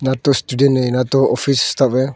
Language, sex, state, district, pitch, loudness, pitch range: Hindi, male, Arunachal Pradesh, Longding, 130 Hz, -16 LUFS, 125-140 Hz